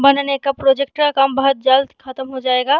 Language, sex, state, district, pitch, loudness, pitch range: Hindi, female, Bihar, Gaya, 270 Hz, -16 LUFS, 265-275 Hz